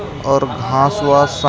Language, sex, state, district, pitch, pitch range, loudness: Hindi, male, Jharkhand, Ranchi, 135 Hz, 130-140 Hz, -15 LUFS